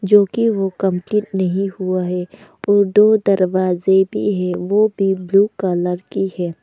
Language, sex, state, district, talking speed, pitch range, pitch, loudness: Hindi, female, Arunachal Pradesh, Longding, 165 wpm, 185-205 Hz, 195 Hz, -17 LUFS